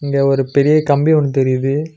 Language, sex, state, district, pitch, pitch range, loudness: Tamil, male, Tamil Nadu, Nilgiris, 140 Hz, 135-150 Hz, -14 LUFS